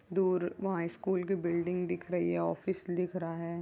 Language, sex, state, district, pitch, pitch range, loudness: Hindi, female, Uttar Pradesh, Jyotiba Phule Nagar, 175 Hz, 170-185 Hz, -33 LUFS